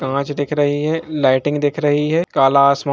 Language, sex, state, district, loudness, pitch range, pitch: Hindi, male, Bihar, Gaya, -17 LUFS, 140-150 Hz, 145 Hz